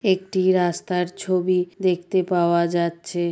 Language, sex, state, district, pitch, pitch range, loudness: Bengali, female, West Bengal, Dakshin Dinajpur, 180 Hz, 175-185 Hz, -22 LUFS